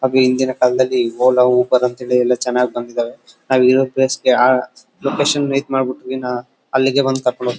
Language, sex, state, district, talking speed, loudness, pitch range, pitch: Kannada, male, Karnataka, Bellary, 160 wpm, -16 LUFS, 125-130 Hz, 125 Hz